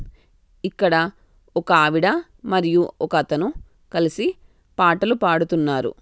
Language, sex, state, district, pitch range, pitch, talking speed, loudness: Telugu, female, Telangana, Karimnagar, 165-190 Hz, 175 Hz, 90 wpm, -20 LUFS